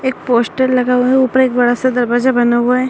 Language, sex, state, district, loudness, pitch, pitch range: Hindi, female, Bihar, Madhepura, -13 LUFS, 250 Hz, 245-260 Hz